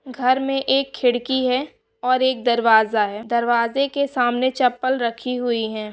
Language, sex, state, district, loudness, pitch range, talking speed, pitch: Hindi, female, Bihar, Bhagalpur, -20 LUFS, 235-265 Hz, 160 wpm, 250 Hz